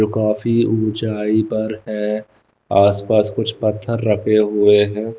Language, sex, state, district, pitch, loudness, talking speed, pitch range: Hindi, male, Himachal Pradesh, Shimla, 110 Hz, -17 LUFS, 125 wpm, 105-110 Hz